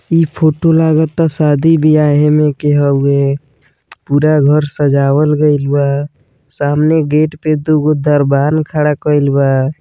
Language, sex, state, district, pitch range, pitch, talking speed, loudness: Bhojpuri, male, Uttar Pradesh, Deoria, 140-155 Hz, 150 Hz, 130 wpm, -12 LUFS